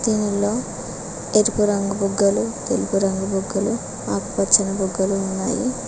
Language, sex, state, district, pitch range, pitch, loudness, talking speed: Telugu, female, Telangana, Mahabubabad, 190-210 Hz, 195 Hz, -20 LUFS, 100 wpm